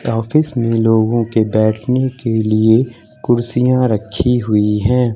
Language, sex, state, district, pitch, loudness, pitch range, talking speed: Hindi, male, Uttar Pradesh, Lucknow, 115 Hz, -15 LUFS, 110-125 Hz, 130 wpm